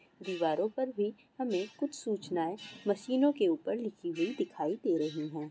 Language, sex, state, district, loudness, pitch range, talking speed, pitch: Hindi, female, Goa, North and South Goa, -34 LUFS, 185-280 Hz, 165 wpm, 215 Hz